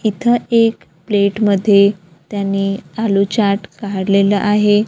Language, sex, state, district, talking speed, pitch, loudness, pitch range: Marathi, female, Maharashtra, Gondia, 110 wpm, 200 Hz, -15 LUFS, 195-215 Hz